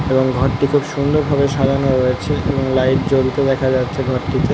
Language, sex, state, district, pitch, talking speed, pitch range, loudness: Bengali, male, West Bengal, North 24 Parganas, 135 Hz, 170 wpm, 130-140 Hz, -17 LUFS